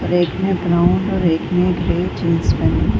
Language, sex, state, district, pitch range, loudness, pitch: Hindi, female, Bihar, Saran, 175-185 Hz, -17 LUFS, 180 Hz